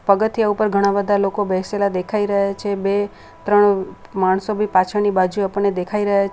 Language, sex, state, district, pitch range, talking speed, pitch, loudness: Gujarati, female, Gujarat, Valsad, 195-205 Hz, 180 wpm, 200 Hz, -19 LUFS